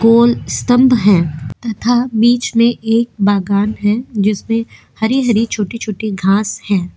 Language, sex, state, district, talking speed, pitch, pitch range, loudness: Hindi, female, Uttar Pradesh, Jyotiba Phule Nagar, 120 wpm, 220 Hz, 205-235 Hz, -14 LUFS